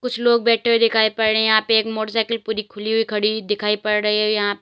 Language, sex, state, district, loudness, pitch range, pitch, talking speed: Hindi, female, Uttar Pradesh, Lalitpur, -18 LUFS, 210-230 Hz, 220 Hz, 300 wpm